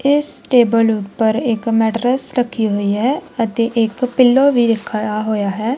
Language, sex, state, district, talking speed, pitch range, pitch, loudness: Punjabi, female, Punjab, Kapurthala, 155 wpm, 220-255 Hz, 230 Hz, -15 LUFS